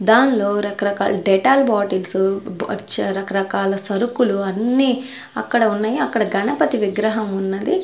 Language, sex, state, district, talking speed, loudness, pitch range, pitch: Telugu, female, Andhra Pradesh, Sri Satya Sai, 105 wpm, -19 LUFS, 195-240 Hz, 205 Hz